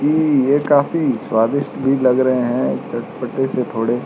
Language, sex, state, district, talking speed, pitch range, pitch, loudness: Hindi, male, Uttarakhand, Tehri Garhwal, 145 wpm, 120-140 Hz, 130 Hz, -17 LUFS